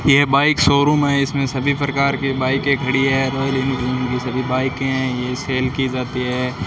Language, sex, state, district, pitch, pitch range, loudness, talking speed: Hindi, male, Rajasthan, Bikaner, 135 Hz, 130-140 Hz, -18 LUFS, 200 wpm